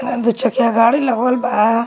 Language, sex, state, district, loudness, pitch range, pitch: Magahi, female, Jharkhand, Palamu, -15 LUFS, 230-250 Hz, 245 Hz